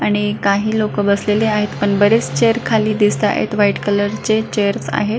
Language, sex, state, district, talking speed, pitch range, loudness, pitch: Marathi, female, Maharashtra, Solapur, 175 wpm, 205-215 Hz, -16 LUFS, 210 Hz